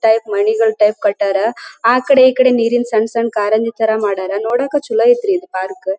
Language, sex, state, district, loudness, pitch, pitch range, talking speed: Kannada, female, Karnataka, Dharwad, -14 LUFS, 225 Hz, 210-240 Hz, 180 wpm